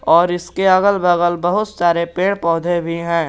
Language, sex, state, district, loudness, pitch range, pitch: Hindi, male, Jharkhand, Garhwa, -16 LUFS, 170-185 Hz, 175 Hz